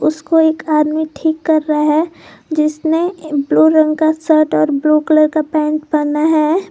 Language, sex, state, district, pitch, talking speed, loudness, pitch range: Hindi, female, Jharkhand, Garhwa, 310 Hz, 170 wpm, -14 LUFS, 305-315 Hz